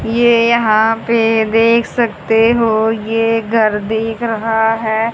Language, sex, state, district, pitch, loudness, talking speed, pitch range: Hindi, male, Haryana, Charkhi Dadri, 225 Hz, -13 LUFS, 130 wpm, 220-230 Hz